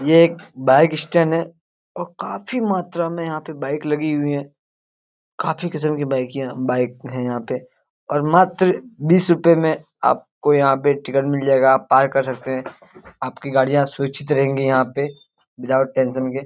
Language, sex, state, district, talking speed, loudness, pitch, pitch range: Hindi, male, Jharkhand, Jamtara, 175 wpm, -19 LUFS, 140 Hz, 130-160 Hz